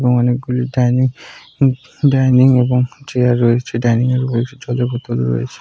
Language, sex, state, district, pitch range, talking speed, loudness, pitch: Bengali, male, West Bengal, Malda, 120-130 Hz, 140 wpm, -16 LUFS, 125 Hz